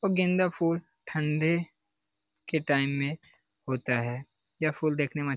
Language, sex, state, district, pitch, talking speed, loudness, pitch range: Hindi, male, Bihar, Lakhisarai, 155 Hz, 145 wpm, -29 LUFS, 140-165 Hz